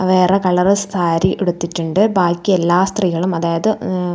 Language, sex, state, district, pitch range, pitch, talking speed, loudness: Malayalam, female, Kerala, Thiruvananthapuram, 175-190 Hz, 180 Hz, 100 wpm, -16 LUFS